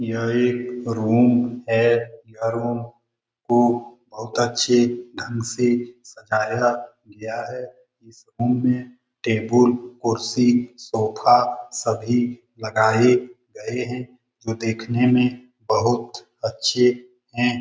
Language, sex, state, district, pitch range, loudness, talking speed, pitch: Hindi, male, Bihar, Lakhisarai, 115-125 Hz, -21 LUFS, 100 wpm, 120 Hz